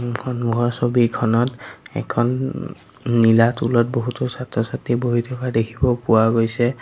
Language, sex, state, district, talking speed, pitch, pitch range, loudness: Assamese, male, Assam, Sonitpur, 125 wpm, 120 Hz, 115-125 Hz, -20 LUFS